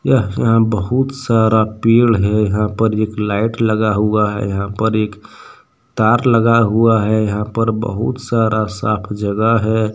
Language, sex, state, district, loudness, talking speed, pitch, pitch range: Hindi, male, Jharkhand, Deoghar, -15 LUFS, 165 wpm, 110 Hz, 105-115 Hz